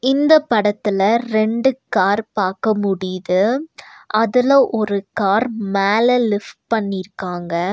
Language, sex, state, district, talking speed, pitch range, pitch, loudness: Tamil, female, Tamil Nadu, Nilgiris, 95 wpm, 195-245 Hz, 215 Hz, -18 LUFS